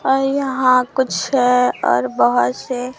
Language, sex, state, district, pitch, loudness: Hindi, female, Chhattisgarh, Raipur, 250 Hz, -16 LUFS